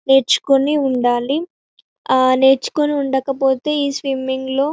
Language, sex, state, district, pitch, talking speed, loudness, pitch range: Telugu, female, Telangana, Karimnagar, 270 Hz, 90 wpm, -17 LUFS, 265-285 Hz